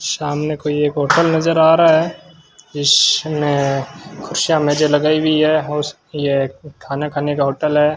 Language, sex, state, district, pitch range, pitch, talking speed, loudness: Hindi, male, Rajasthan, Bikaner, 145-160 Hz, 150 Hz, 150 wpm, -16 LUFS